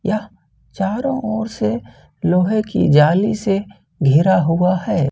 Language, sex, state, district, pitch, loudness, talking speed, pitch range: Hindi, male, Jharkhand, Ranchi, 185 Hz, -17 LUFS, 130 wpm, 150-210 Hz